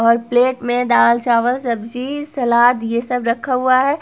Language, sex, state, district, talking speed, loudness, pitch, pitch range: Hindi, female, Bihar, Gopalganj, 180 wpm, -16 LUFS, 245 Hz, 235-255 Hz